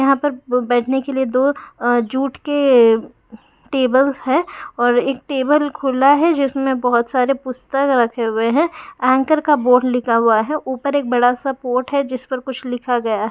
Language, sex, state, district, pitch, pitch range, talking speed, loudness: Hindi, female, Bihar, Jamui, 260 Hz, 245-280 Hz, 175 wpm, -17 LUFS